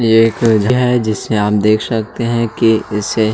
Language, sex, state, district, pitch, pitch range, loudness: Hindi, male, Chhattisgarh, Jashpur, 110 Hz, 110-115 Hz, -14 LUFS